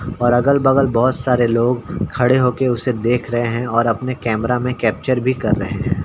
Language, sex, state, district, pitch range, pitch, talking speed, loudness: Hindi, male, Bihar, Samastipur, 115-130 Hz, 125 Hz, 200 wpm, -17 LUFS